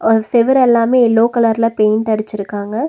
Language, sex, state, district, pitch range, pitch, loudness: Tamil, female, Tamil Nadu, Nilgiris, 215-235 Hz, 225 Hz, -14 LUFS